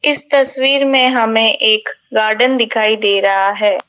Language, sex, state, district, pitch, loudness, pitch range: Hindi, female, Rajasthan, Jaipur, 250 Hz, -12 LUFS, 215-275 Hz